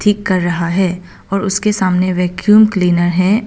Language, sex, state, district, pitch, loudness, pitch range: Hindi, female, Arunachal Pradesh, Papum Pare, 185 Hz, -14 LUFS, 180-205 Hz